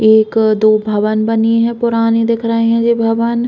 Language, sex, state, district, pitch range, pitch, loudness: Bundeli, female, Uttar Pradesh, Hamirpur, 220-230 Hz, 230 Hz, -13 LUFS